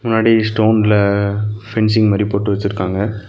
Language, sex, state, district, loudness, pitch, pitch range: Tamil, male, Tamil Nadu, Nilgiris, -15 LUFS, 105 Hz, 100-110 Hz